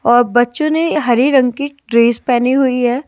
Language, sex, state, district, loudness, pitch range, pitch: Hindi, female, Haryana, Jhajjar, -13 LUFS, 245-280 Hz, 250 Hz